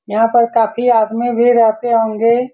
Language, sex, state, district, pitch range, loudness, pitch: Hindi, male, Bihar, Saran, 225-240 Hz, -13 LUFS, 230 Hz